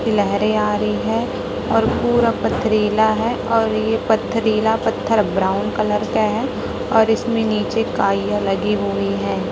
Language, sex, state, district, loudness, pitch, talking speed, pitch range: Hindi, female, Chhattisgarh, Raipur, -18 LUFS, 220 Hz, 145 wpm, 190-225 Hz